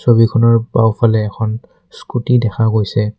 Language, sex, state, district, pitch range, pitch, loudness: Assamese, male, Assam, Kamrup Metropolitan, 110-115 Hz, 115 Hz, -14 LUFS